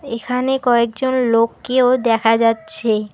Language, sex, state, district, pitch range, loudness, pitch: Bengali, female, West Bengal, Alipurduar, 230-255 Hz, -16 LUFS, 235 Hz